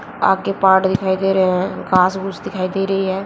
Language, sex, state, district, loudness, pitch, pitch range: Hindi, female, Haryana, Jhajjar, -17 LUFS, 190 Hz, 185-195 Hz